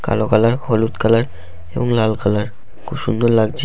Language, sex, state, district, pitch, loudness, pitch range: Bengali, male, West Bengal, Malda, 110 Hz, -17 LUFS, 105-115 Hz